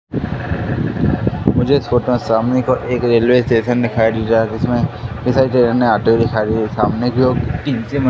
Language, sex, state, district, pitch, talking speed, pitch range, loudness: Hindi, male, Madhya Pradesh, Katni, 120 Hz, 135 wpm, 115-125 Hz, -16 LUFS